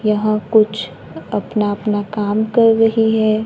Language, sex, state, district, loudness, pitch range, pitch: Hindi, female, Maharashtra, Gondia, -16 LUFS, 205-220 Hz, 215 Hz